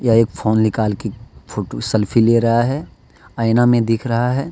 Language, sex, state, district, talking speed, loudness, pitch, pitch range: Hindi, male, Jharkhand, Deoghar, 185 wpm, -17 LUFS, 115 Hz, 110-120 Hz